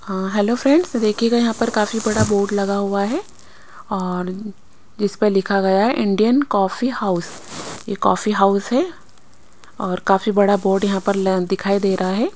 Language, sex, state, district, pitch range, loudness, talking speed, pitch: Hindi, female, Chandigarh, Chandigarh, 195-225 Hz, -19 LUFS, 180 wpm, 200 Hz